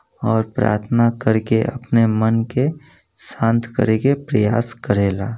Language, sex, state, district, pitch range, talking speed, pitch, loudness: Bhojpuri, male, Uttar Pradesh, Gorakhpur, 110-125 Hz, 135 wpm, 115 Hz, -18 LUFS